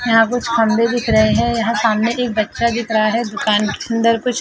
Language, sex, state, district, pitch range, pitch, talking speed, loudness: Hindi, female, Uttar Pradesh, Jalaun, 220-235 Hz, 230 Hz, 230 wpm, -16 LUFS